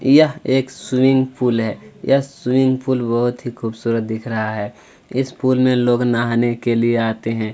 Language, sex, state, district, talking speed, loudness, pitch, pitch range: Hindi, male, Chhattisgarh, Kabirdham, 185 wpm, -18 LUFS, 120 Hz, 115-130 Hz